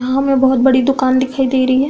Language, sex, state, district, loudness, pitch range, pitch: Hindi, female, Uttar Pradesh, Budaun, -14 LUFS, 260-270 Hz, 265 Hz